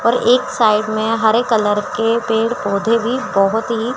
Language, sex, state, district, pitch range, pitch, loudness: Hindi, female, Chandigarh, Chandigarh, 215-240 Hz, 225 Hz, -16 LUFS